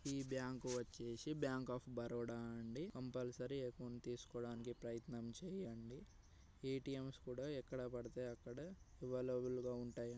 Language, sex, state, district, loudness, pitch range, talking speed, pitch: Telugu, male, Telangana, Nalgonda, -48 LUFS, 120-130 Hz, 125 wpm, 125 Hz